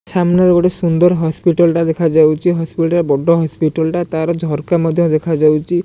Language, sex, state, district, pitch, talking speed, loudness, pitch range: Odia, male, Odisha, Khordha, 165 Hz, 135 wpm, -14 LUFS, 160-175 Hz